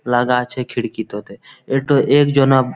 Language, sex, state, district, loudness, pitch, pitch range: Bengali, male, West Bengal, Malda, -17 LUFS, 125 Hz, 120-135 Hz